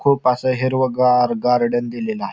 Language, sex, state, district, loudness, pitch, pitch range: Marathi, male, Maharashtra, Pune, -18 LUFS, 125 Hz, 120-130 Hz